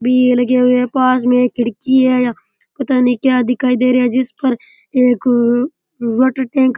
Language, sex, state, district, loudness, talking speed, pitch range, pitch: Rajasthani, male, Rajasthan, Churu, -14 LUFS, 195 wpm, 245-260 Hz, 250 Hz